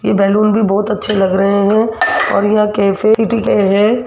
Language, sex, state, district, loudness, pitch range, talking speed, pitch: Hindi, female, Rajasthan, Jaipur, -13 LUFS, 200-215 Hz, 175 wpm, 210 Hz